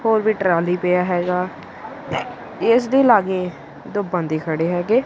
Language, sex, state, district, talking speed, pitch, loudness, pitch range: Punjabi, female, Punjab, Kapurthala, 140 wpm, 180 Hz, -19 LUFS, 175-220 Hz